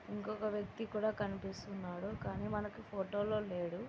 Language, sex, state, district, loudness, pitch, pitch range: Telugu, female, Andhra Pradesh, Anantapur, -40 LUFS, 205 Hz, 195-215 Hz